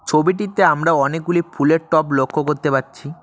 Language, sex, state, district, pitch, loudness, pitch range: Bengali, male, West Bengal, Cooch Behar, 155 Hz, -17 LUFS, 145-170 Hz